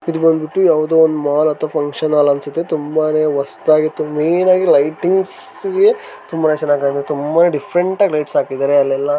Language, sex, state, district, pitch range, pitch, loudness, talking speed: Kannada, male, Karnataka, Gulbarga, 145-170 Hz, 155 Hz, -15 LUFS, 155 wpm